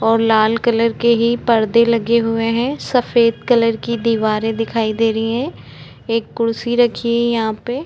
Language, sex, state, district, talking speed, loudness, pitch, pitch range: Hindi, female, Maharashtra, Chandrapur, 175 wpm, -16 LUFS, 230 Hz, 225-235 Hz